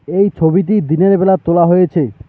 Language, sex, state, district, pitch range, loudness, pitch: Bengali, male, West Bengal, Alipurduar, 160-190 Hz, -12 LUFS, 180 Hz